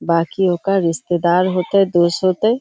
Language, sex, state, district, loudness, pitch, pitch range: Hindi, female, Bihar, Kishanganj, -16 LUFS, 180 Hz, 170-195 Hz